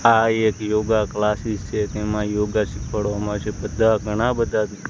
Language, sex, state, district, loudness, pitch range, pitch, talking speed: Gujarati, male, Gujarat, Gandhinagar, -22 LUFS, 105-110 Hz, 105 Hz, 145 wpm